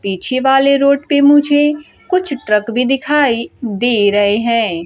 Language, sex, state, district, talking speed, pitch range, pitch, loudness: Hindi, female, Bihar, Kaimur, 150 wpm, 215-285 Hz, 255 Hz, -13 LUFS